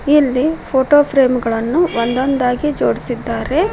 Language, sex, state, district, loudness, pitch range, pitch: Kannada, female, Karnataka, Koppal, -15 LUFS, 245-295 Hz, 265 Hz